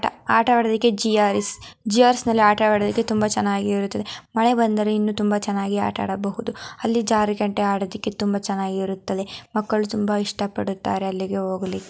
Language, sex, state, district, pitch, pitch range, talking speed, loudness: Kannada, female, Karnataka, Mysore, 210 Hz, 200-220 Hz, 130 wpm, -22 LUFS